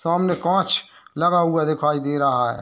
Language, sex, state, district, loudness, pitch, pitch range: Hindi, male, Bihar, Muzaffarpur, -20 LUFS, 165 Hz, 145-175 Hz